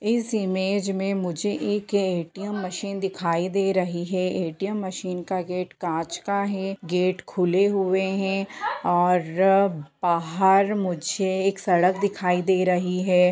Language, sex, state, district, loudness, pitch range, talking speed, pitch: Hindi, female, Bihar, Bhagalpur, -24 LUFS, 180-195 Hz, 150 wpm, 190 Hz